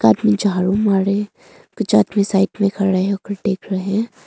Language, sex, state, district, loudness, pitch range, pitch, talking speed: Hindi, female, Arunachal Pradesh, Longding, -18 LUFS, 190-205 Hz, 200 Hz, 170 wpm